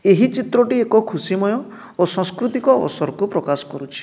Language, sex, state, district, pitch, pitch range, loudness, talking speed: Odia, male, Odisha, Nuapada, 200 Hz, 170-240 Hz, -18 LUFS, 150 wpm